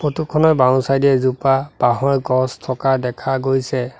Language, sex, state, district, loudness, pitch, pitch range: Assamese, male, Assam, Sonitpur, -17 LUFS, 135 Hz, 130-140 Hz